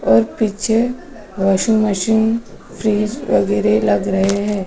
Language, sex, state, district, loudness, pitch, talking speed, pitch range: Hindi, female, Bihar, West Champaran, -17 LUFS, 205 Hz, 115 wpm, 190-220 Hz